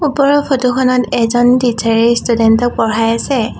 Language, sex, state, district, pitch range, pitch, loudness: Assamese, female, Assam, Sonitpur, 230-255 Hz, 245 Hz, -13 LUFS